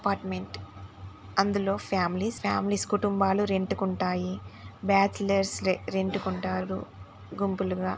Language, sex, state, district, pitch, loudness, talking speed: Telugu, female, Telangana, Nalgonda, 190 Hz, -28 LUFS, 100 wpm